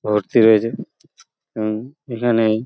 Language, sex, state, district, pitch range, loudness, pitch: Bengali, male, West Bengal, Paschim Medinipur, 110-120 Hz, -18 LUFS, 110 Hz